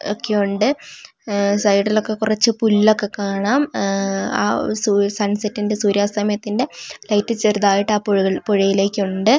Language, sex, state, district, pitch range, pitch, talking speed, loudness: Malayalam, female, Kerala, Wayanad, 200-215 Hz, 210 Hz, 115 wpm, -18 LUFS